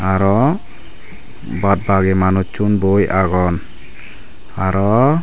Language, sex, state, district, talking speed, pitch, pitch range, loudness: Chakma, male, Tripura, Dhalai, 80 wpm, 95 Hz, 95-105 Hz, -16 LUFS